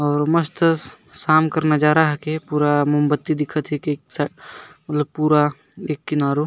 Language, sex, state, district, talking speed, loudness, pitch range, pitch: Sadri, male, Chhattisgarh, Jashpur, 165 wpm, -20 LUFS, 150-155 Hz, 150 Hz